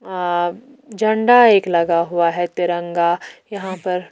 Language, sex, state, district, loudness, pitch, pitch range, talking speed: Hindi, female, Chhattisgarh, Raipur, -17 LUFS, 180 Hz, 175-210 Hz, 130 wpm